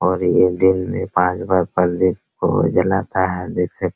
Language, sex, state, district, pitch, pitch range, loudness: Hindi, male, Bihar, Araria, 90 Hz, 90-95 Hz, -18 LUFS